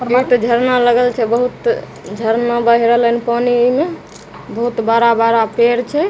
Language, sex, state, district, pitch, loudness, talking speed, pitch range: Maithili, female, Bihar, Begusarai, 240 Hz, -14 LUFS, 155 wpm, 235-245 Hz